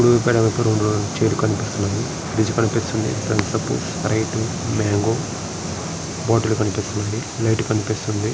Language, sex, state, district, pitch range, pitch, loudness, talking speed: Telugu, male, Andhra Pradesh, Srikakulam, 105-115 Hz, 110 Hz, -21 LUFS, 85 wpm